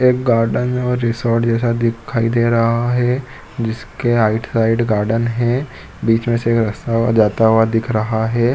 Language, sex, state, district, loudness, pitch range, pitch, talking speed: Hindi, male, Chhattisgarh, Bilaspur, -17 LUFS, 115-120 Hz, 115 Hz, 160 wpm